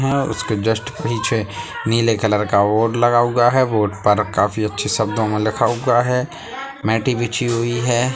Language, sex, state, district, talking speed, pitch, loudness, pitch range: Hindi, male, Bihar, Sitamarhi, 175 wpm, 115 Hz, -18 LUFS, 105-120 Hz